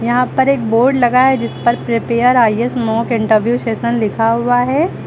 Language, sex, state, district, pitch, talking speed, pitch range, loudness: Hindi, female, Uttar Pradesh, Lucknow, 240 Hz, 190 wpm, 230-250 Hz, -14 LUFS